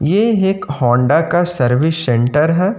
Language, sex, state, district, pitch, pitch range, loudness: Hindi, male, Jharkhand, Ranchi, 160 Hz, 125-185 Hz, -14 LUFS